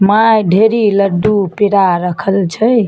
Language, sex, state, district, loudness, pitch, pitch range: Maithili, female, Bihar, Samastipur, -12 LUFS, 200 Hz, 190-215 Hz